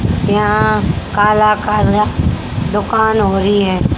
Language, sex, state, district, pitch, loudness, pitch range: Hindi, female, Haryana, Rohtak, 205 Hz, -14 LUFS, 195-215 Hz